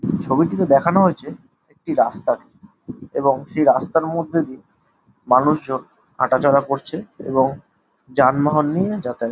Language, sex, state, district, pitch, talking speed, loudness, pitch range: Bengali, male, West Bengal, Jhargram, 150 Hz, 115 wpm, -19 LUFS, 130-165 Hz